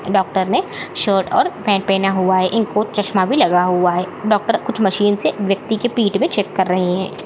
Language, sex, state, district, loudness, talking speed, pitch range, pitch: Hindi, female, Bihar, Purnia, -17 LUFS, 215 wpm, 185-210 Hz, 195 Hz